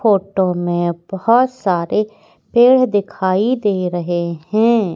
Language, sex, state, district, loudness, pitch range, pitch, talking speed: Hindi, female, Madhya Pradesh, Katni, -16 LUFS, 175-225 Hz, 200 Hz, 110 wpm